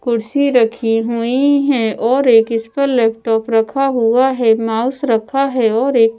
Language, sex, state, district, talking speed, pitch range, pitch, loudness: Hindi, female, Bihar, Patna, 165 wpm, 225-265 Hz, 235 Hz, -15 LUFS